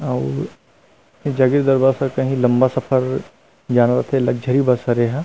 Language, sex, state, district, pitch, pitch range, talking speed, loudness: Chhattisgarhi, male, Chhattisgarh, Rajnandgaon, 130 Hz, 120-135 Hz, 135 wpm, -18 LUFS